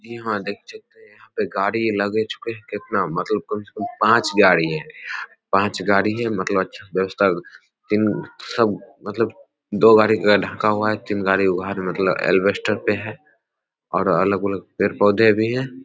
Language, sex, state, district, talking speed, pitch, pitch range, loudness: Hindi, male, Bihar, Samastipur, 165 wpm, 105 Hz, 95-110 Hz, -20 LUFS